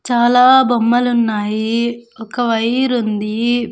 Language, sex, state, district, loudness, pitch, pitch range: Telugu, female, Andhra Pradesh, Sri Satya Sai, -15 LUFS, 235 Hz, 225-245 Hz